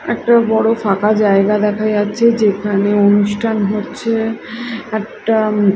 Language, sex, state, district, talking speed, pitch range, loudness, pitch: Bengali, female, Odisha, Malkangiri, 105 wpm, 205-225 Hz, -15 LUFS, 215 Hz